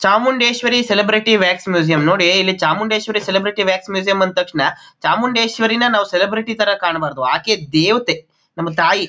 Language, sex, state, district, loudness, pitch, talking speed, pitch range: Kannada, male, Karnataka, Mysore, -15 LUFS, 200 Hz, 140 wpm, 175-225 Hz